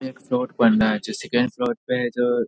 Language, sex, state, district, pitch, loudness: Hindi, male, Bihar, Saharsa, 125 Hz, -22 LUFS